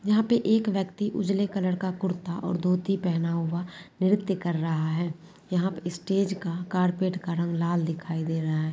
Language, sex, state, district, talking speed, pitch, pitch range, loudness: Hindi, female, Uttarakhand, Tehri Garhwal, 185 wpm, 180 Hz, 170-195 Hz, -27 LUFS